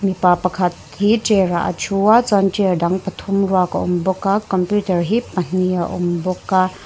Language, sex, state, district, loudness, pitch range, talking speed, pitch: Mizo, female, Mizoram, Aizawl, -18 LUFS, 180-195 Hz, 210 wpm, 185 Hz